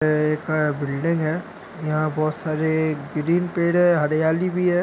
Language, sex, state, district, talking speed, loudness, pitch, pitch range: Hindi, male, Maharashtra, Nagpur, 175 wpm, -22 LUFS, 155 Hz, 155-175 Hz